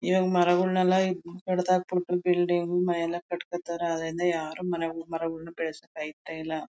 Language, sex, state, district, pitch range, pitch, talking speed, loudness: Kannada, female, Karnataka, Mysore, 165-180 Hz, 175 Hz, 115 wpm, -28 LUFS